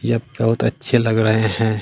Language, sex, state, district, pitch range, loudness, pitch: Hindi, male, Bihar, Katihar, 110-115 Hz, -18 LUFS, 115 Hz